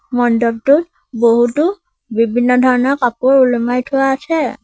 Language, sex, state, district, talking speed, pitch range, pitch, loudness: Assamese, female, Assam, Sonitpur, 105 wpm, 240-280 Hz, 250 Hz, -14 LUFS